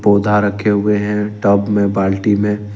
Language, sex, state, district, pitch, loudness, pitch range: Hindi, male, Jharkhand, Ranchi, 105 Hz, -15 LUFS, 100-105 Hz